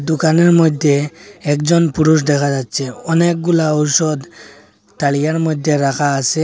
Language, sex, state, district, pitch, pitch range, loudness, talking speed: Bengali, male, Assam, Hailakandi, 155 Hz, 145-165 Hz, -15 LUFS, 100 wpm